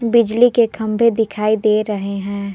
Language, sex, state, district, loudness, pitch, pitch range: Hindi, female, Jharkhand, Palamu, -16 LUFS, 215 Hz, 210-230 Hz